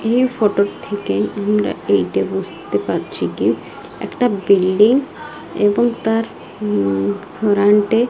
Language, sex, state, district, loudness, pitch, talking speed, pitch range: Bengali, female, Odisha, Malkangiri, -17 LUFS, 210 Hz, 120 wpm, 200-230 Hz